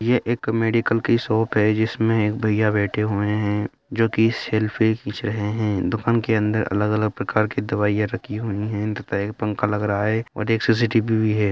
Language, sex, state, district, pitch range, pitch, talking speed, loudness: Hindi, male, Bihar, Madhepura, 105-115 Hz, 110 Hz, 205 wpm, -22 LUFS